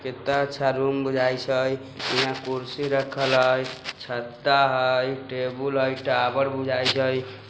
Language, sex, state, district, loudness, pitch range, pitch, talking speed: Bajjika, male, Bihar, Vaishali, -24 LUFS, 130-135 Hz, 130 Hz, 120 wpm